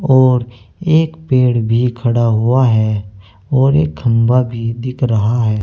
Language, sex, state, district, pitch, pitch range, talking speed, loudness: Hindi, male, Uttar Pradesh, Saharanpur, 120 Hz, 115-130 Hz, 150 wpm, -14 LUFS